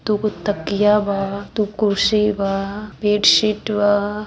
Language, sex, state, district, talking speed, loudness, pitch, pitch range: Hindi, female, Bihar, East Champaran, 125 wpm, -18 LUFS, 210 Hz, 200-210 Hz